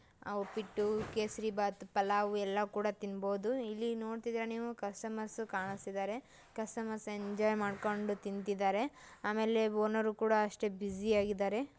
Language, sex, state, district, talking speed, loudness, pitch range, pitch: Kannada, female, Karnataka, Dakshina Kannada, 110 wpm, -37 LUFS, 205-220 Hz, 210 Hz